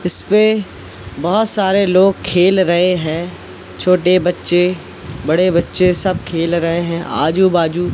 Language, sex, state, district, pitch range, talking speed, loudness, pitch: Hindi, male, Madhya Pradesh, Katni, 165-185 Hz, 135 wpm, -14 LUFS, 175 Hz